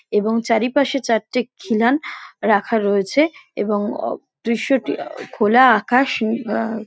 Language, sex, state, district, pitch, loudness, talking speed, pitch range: Bengali, female, West Bengal, Dakshin Dinajpur, 225 Hz, -19 LUFS, 115 wpm, 215-255 Hz